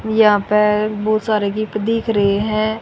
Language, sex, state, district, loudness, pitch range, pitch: Hindi, female, Haryana, Rohtak, -17 LUFS, 210-220 Hz, 215 Hz